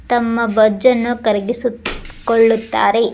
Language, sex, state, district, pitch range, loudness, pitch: Kannada, male, Karnataka, Dharwad, 220-240 Hz, -15 LUFS, 230 Hz